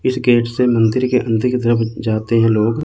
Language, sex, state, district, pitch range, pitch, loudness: Hindi, male, Chandigarh, Chandigarh, 115-125 Hz, 120 Hz, -16 LUFS